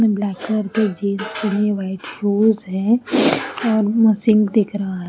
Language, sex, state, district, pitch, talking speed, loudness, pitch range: Hindi, female, Haryana, Rohtak, 210 Hz, 140 wpm, -18 LUFS, 200-220 Hz